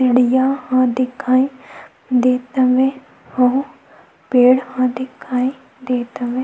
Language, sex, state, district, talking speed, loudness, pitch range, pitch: Chhattisgarhi, female, Chhattisgarh, Sukma, 100 wpm, -17 LUFS, 250-265 Hz, 255 Hz